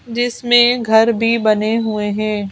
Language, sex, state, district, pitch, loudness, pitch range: Hindi, female, Madhya Pradesh, Bhopal, 225 Hz, -15 LUFS, 215-240 Hz